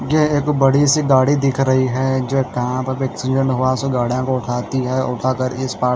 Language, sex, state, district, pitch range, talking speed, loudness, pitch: Hindi, male, Haryana, Charkhi Dadri, 130-135 Hz, 230 wpm, -18 LUFS, 130 Hz